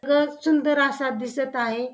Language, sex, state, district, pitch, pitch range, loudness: Marathi, female, Maharashtra, Pune, 275 Hz, 250-290 Hz, -23 LUFS